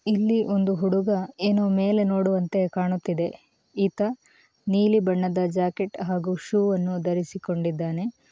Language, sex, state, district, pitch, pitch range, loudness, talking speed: Kannada, female, Karnataka, Mysore, 195 Hz, 180-205 Hz, -24 LUFS, 110 wpm